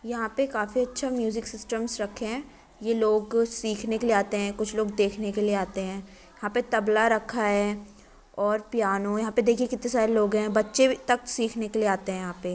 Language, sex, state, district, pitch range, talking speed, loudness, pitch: Hindi, female, Uttar Pradesh, Jyotiba Phule Nagar, 205-230 Hz, 215 wpm, -26 LUFS, 220 Hz